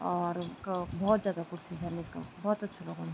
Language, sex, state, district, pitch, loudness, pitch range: Garhwali, female, Uttarakhand, Tehri Garhwal, 175 Hz, -34 LUFS, 170-195 Hz